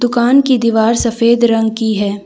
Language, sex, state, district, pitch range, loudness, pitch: Hindi, female, Jharkhand, Deoghar, 220-240 Hz, -12 LUFS, 230 Hz